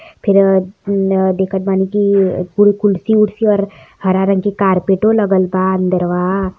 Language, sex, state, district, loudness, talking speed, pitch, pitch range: Hindi, female, Uttar Pradesh, Varanasi, -14 LUFS, 145 wpm, 195 Hz, 185-205 Hz